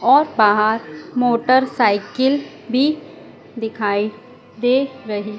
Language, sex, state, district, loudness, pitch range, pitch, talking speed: Hindi, female, Madhya Pradesh, Dhar, -18 LUFS, 210-260 Hz, 235 Hz, 80 wpm